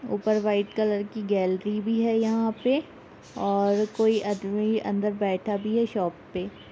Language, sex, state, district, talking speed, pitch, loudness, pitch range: Hindi, female, Jharkhand, Jamtara, 150 wpm, 210 Hz, -26 LUFS, 200-220 Hz